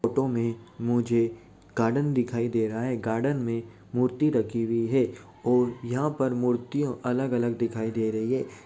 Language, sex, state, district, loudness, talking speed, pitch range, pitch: Hindi, male, Uttar Pradesh, Jalaun, -27 LUFS, 165 wpm, 115-125 Hz, 120 Hz